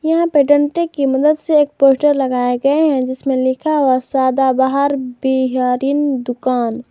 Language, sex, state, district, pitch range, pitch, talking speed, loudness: Hindi, female, Jharkhand, Garhwa, 255-290 Hz, 270 Hz, 150 wpm, -15 LUFS